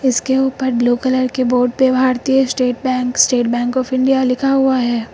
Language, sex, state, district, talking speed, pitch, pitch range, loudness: Hindi, female, Uttar Pradesh, Lucknow, 200 wpm, 255 Hz, 250-260 Hz, -15 LUFS